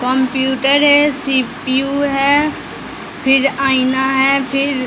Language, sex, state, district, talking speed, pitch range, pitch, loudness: Hindi, female, Bihar, Patna, 110 wpm, 265-280 Hz, 270 Hz, -14 LUFS